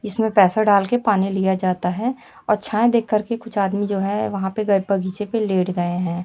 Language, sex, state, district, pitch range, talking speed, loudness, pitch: Hindi, female, Chhattisgarh, Raipur, 190-215 Hz, 220 wpm, -20 LUFS, 205 Hz